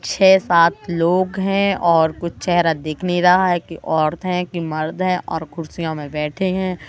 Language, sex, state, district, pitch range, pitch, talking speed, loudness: Hindi, female, Madhya Pradesh, Katni, 160-185 Hz, 170 Hz, 185 wpm, -18 LUFS